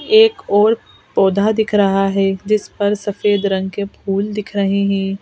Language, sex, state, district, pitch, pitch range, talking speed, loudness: Hindi, female, Madhya Pradesh, Bhopal, 200 Hz, 195-210 Hz, 170 wpm, -16 LUFS